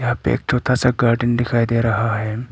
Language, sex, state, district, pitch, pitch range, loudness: Hindi, male, Arunachal Pradesh, Papum Pare, 120 Hz, 115-125 Hz, -18 LUFS